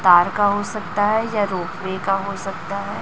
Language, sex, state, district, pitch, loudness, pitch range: Hindi, female, Chhattisgarh, Raipur, 200 Hz, -21 LUFS, 185-205 Hz